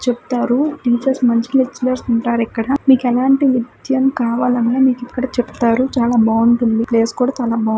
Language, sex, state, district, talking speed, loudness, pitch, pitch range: Telugu, female, Andhra Pradesh, Krishna, 155 wpm, -16 LUFS, 245 Hz, 235-260 Hz